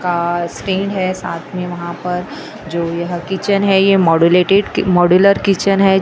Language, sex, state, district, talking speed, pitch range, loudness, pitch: Hindi, female, Maharashtra, Gondia, 160 wpm, 175-195 Hz, -15 LUFS, 180 Hz